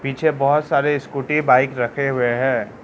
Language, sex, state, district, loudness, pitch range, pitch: Hindi, male, Arunachal Pradesh, Lower Dibang Valley, -19 LUFS, 130-145 Hz, 135 Hz